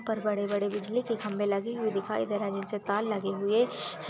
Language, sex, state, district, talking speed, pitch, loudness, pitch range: Hindi, female, Chhattisgarh, Raigarh, 235 wpm, 210 Hz, -30 LUFS, 200-220 Hz